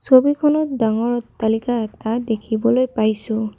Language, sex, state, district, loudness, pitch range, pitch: Assamese, female, Assam, Kamrup Metropolitan, -19 LUFS, 220-250 Hz, 230 Hz